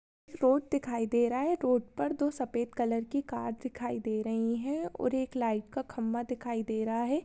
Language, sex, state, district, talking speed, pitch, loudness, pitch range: Hindi, female, Rajasthan, Nagaur, 205 wpm, 245 Hz, -32 LUFS, 230-270 Hz